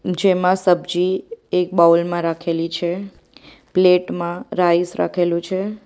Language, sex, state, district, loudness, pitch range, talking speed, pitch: Gujarati, female, Gujarat, Valsad, -19 LUFS, 170-185 Hz, 125 wpm, 180 Hz